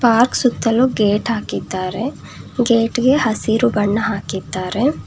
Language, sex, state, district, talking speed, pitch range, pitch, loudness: Kannada, female, Karnataka, Bangalore, 95 wpm, 205-245 Hz, 225 Hz, -18 LUFS